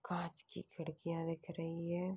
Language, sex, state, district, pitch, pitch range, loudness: Hindi, female, Chhattisgarh, Balrampur, 170 Hz, 165-175 Hz, -44 LUFS